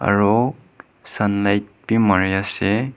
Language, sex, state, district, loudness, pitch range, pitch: Nagamese, male, Nagaland, Kohima, -19 LUFS, 100-115 Hz, 100 Hz